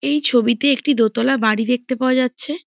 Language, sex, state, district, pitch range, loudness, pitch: Bengali, female, West Bengal, Jalpaiguri, 240-285 Hz, -17 LUFS, 255 Hz